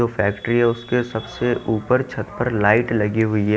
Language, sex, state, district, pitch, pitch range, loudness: Hindi, male, Haryana, Jhajjar, 115 Hz, 110-120 Hz, -20 LUFS